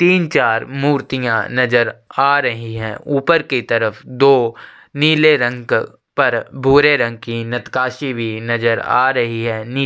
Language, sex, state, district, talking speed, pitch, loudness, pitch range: Hindi, male, Chhattisgarh, Sukma, 150 wpm, 125 Hz, -16 LUFS, 115-140 Hz